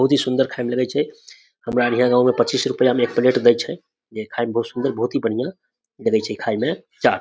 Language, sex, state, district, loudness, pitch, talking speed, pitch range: Maithili, male, Bihar, Samastipur, -20 LUFS, 125 Hz, 250 wpm, 120-130 Hz